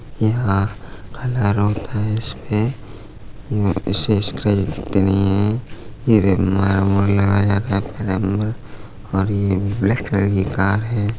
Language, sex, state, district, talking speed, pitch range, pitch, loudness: Hindi, male, Uttar Pradesh, Budaun, 85 wpm, 95-110 Hz, 100 Hz, -19 LUFS